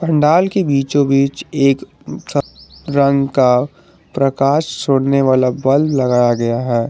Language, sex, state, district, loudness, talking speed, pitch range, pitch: Hindi, male, Jharkhand, Garhwa, -15 LUFS, 120 wpm, 125-145 Hz, 135 Hz